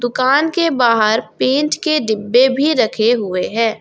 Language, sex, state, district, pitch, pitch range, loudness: Hindi, female, Jharkhand, Garhwa, 245 Hz, 225-290 Hz, -15 LUFS